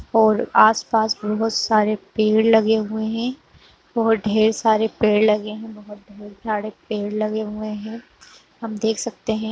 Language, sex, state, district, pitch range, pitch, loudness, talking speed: Kumaoni, female, Uttarakhand, Uttarkashi, 215-220 Hz, 220 Hz, -20 LUFS, 165 wpm